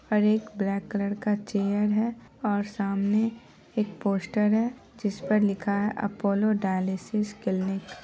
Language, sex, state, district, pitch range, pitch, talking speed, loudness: Hindi, female, Bihar, Araria, 200-215 Hz, 205 Hz, 150 wpm, -27 LUFS